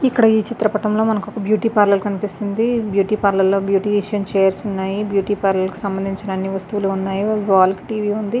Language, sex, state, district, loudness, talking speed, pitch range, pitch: Telugu, female, Andhra Pradesh, Visakhapatnam, -18 LUFS, 180 wpm, 195-215 Hz, 205 Hz